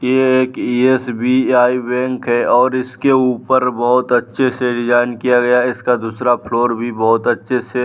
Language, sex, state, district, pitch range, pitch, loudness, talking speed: Hindi, male, Bihar, Vaishali, 120-130 Hz, 125 Hz, -15 LUFS, 175 wpm